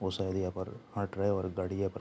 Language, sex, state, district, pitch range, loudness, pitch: Hindi, male, Bihar, Saharsa, 95-100 Hz, -35 LUFS, 95 Hz